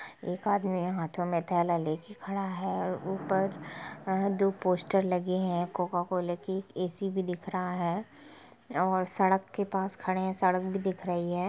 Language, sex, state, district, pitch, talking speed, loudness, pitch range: Hindi, female, Bihar, Gopalganj, 185 Hz, 155 wpm, -31 LUFS, 180-195 Hz